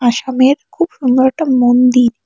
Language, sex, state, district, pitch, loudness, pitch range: Bengali, female, Tripura, West Tripura, 260 Hz, -12 LUFS, 245-280 Hz